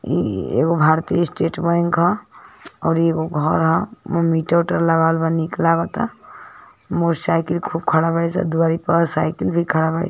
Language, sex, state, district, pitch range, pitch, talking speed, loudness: Hindi, male, Uttar Pradesh, Ghazipur, 160-170 Hz, 165 Hz, 180 wpm, -19 LUFS